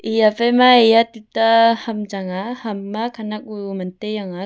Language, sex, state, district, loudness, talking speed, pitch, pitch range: Wancho, female, Arunachal Pradesh, Longding, -17 LUFS, 160 wpm, 220 Hz, 205-230 Hz